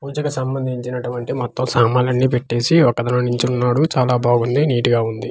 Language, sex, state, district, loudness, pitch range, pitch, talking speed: Telugu, male, Andhra Pradesh, Manyam, -18 LUFS, 120-130 Hz, 125 Hz, 125 wpm